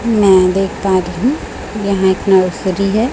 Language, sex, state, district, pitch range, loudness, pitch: Hindi, female, Chhattisgarh, Raipur, 190-205 Hz, -14 LUFS, 195 Hz